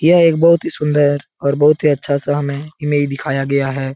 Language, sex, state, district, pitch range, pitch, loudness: Hindi, male, Bihar, Jahanabad, 140-155 Hz, 145 Hz, -15 LUFS